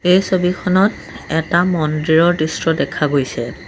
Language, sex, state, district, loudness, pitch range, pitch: Assamese, male, Assam, Sonitpur, -16 LUFS, 155-180 Hz, 165 Hz